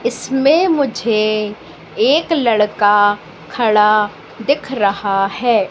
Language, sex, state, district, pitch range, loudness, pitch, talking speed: Hindi, female, Madhya Pradesh, Katni, 205-270 Hz, -15 LUFS, 220 Hz, 85 wpm